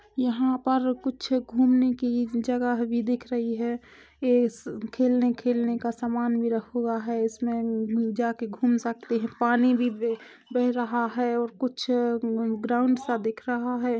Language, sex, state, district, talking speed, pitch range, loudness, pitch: Hindi, female, Chhattisgarh, Korba, 160 wpm, 235-245 Hz, -26 LUFS, 240 Hz